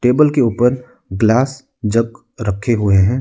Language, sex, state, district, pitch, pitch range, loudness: Hindi, male, Arunachal Pradesh, Lower Dibang Valley, 120 Hz, 110-125 Hz, -16 LUFS